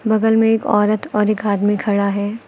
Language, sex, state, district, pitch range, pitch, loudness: Hindi, female, Uttar Pradesh, Lucknow, 205-220 Hz, 210 Hz, -17 LUFS